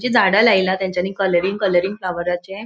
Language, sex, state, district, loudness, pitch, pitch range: Konkani, female, Goa, North and South Goa, -18 LUFS, 190 Hz, 180-200 Hz